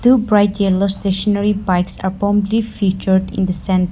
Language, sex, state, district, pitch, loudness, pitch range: English, female, Nagaland, Dimapur, 195 Hz, -16 LUFS, 190-205 Hz